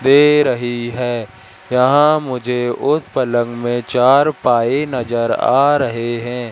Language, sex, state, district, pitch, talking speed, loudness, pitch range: Hindi, male, Madhya Pradesh, Katni, 125 Hz, 130 wpm, -16 LUFS, 120-135 Hz